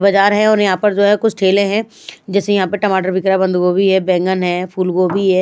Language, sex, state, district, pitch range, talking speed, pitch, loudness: Hindi, female, Bihar, Patna, 185-205 Hz, 265 wpm, 190 Hz, -14 LUFS